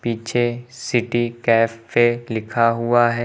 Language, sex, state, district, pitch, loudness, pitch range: Hindi, male, Uttar Pradesh, Lucknow, 120 Hz, -19 LUFS, 115-120 Hz